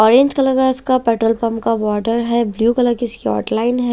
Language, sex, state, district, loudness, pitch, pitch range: Hindi, female, Chandigarh, Chandigarh, -16 LUFS, 235 Hz, 225-250 Hz